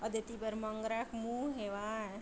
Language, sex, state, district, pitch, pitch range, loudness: Chhattisgarhi, female, Chhattisgarh, Bilaspur, 220 Hz, 215-230 Hz, -40 LUFS